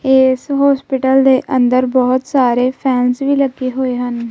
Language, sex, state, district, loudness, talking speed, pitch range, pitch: Punjabi, female, Punjab, Kapurthala, -14 LUFS, 155 wpm, 255-265 Hz, 260 Hz